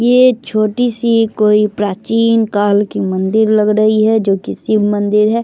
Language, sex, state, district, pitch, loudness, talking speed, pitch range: Hindi, female, Bihar, Begusarai, 215 Hz, -13 LUFS, 155 wpm, 205-225 Hz